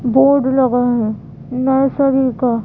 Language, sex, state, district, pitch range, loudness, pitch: Hindi, female, Madhya Pradesh, Bhopal, 240-265 Hz, -15 LUFS, 255 Hz